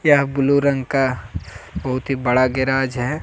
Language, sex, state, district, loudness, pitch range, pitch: Hindi, male, Jharkhand, Deoghar, -19 LUFS, 125-140 Hz, 135 Hz